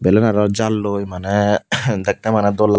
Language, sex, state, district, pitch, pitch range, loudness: Chakma, female, Tripura, Unakoti, 105 Hz, 100-110 Hz, -18 LUFS